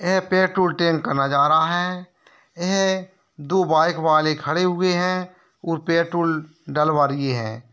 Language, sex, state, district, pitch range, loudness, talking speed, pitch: Hindi, male, Bihar, Darbhanga, 155-180 Hz, -20 LUFS, 140 wpm, 170 Hz